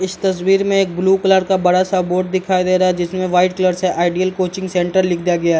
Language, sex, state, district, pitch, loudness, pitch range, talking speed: Hindi, male, Bihar, Darbhanga, 185 Hz, -16 LUFS, 180-190 Hz, 265 wpm